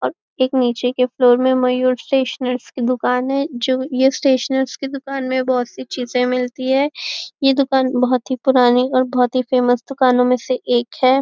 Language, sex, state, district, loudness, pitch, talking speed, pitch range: Hindi, female, Maharashtra, Nagpur, -17 LUFS, 255 Hz, 190 wpm, 250-265 Hz